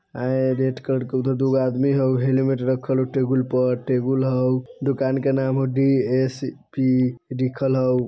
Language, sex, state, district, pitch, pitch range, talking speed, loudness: Bajjika, male, Bihar, Vaishali, 130 Hz, 130-135 Hz, 170 wpm, -22 LUFS